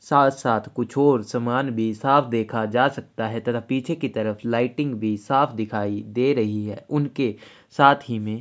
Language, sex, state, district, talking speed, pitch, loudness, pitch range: Hindi, male, Chhattisgarh, Kabirdham, 185 wpm, 120 Hz, -23 LUFS, 110-140 Hz